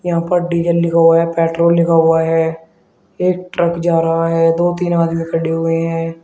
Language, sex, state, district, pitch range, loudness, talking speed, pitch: Hindi, male, Uttar Pradesh, Shamli, 165-170 Hz, -15 LUFS, 200 wpm, 165 Hz